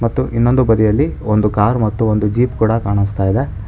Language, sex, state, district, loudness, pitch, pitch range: Kannada, male, Karnataka, Bangalore, -15 LUFS, 110 Hz, 105-120 Hz